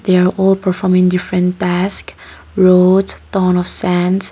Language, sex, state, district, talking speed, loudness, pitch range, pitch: English, female, Nagaland, Kohima, 125 wpm, -13 LUFS, 180-190 Hz, 185 Hz